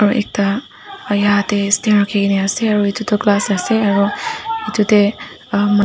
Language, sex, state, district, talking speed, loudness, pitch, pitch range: Nagamese, female, Nagaland, Dimapur, 135 wpm, -16 LUFS, 205 Hz, 200-220 Hz